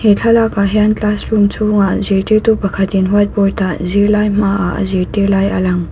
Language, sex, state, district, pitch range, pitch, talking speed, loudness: Mizo, female, Mizoram, Aizawl, 195-210 Hz, 200 Hz, 190 wpm, -13 LUFS